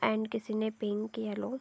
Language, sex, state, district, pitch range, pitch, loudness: Hindi, female, Uttar Pradesh, Deoria, 215-225 Hz, 220 Hz, -34 LUFS